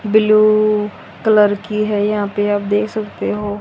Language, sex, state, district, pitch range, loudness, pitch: Hindi, female, Haryana, Rohtak, 205-215 Hz, -16 LUFS, 210 Hz